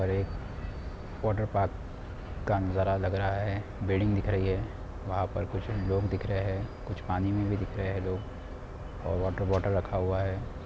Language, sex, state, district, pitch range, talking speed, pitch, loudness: Hindi, male, Bihar, Samastipur, 95-100 Hz, 185 wpm, 95 Hz, -31 LUFS